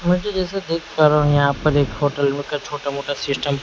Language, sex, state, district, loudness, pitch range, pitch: Hindi, male, Maharashtra, Mumbai Suburban, -20 LUFS, 140-165 Hz, 145 Hz